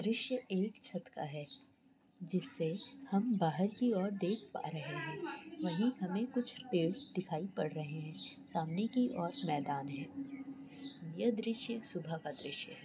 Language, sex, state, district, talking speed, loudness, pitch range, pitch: Hindi, female, Jharkhand, Jamtara, 145 wpm, -39 LUFS, 165-240 Hz, 195 Hz